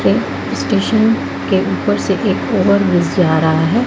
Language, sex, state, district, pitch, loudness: Hindi, female, Madhya Pradesh, Katni, 160 Hz, -15 LUFS